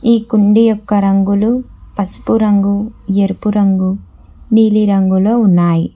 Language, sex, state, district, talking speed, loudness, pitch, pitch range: Telugu, female, Telangana, Hyderabad, 110 wpm, -13 LUFS, 205 Hz, 195-220 Hz